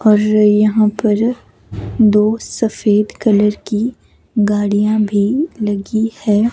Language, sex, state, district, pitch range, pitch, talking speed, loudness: Hindi, female, Himachal Pradesh, Shimla, 210-220 Hz, 215 Hz, 110 wpm, -15 LUFS